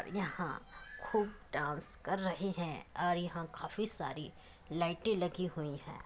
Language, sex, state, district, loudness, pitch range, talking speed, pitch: Hindi, female, Uttar Pradesh, Muzaffarnagar, -38 LUFS, 165-195 Hz, 140 wpm, 175 Hz